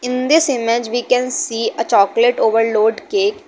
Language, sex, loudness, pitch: English, female, -16 LUFS, 250 Hz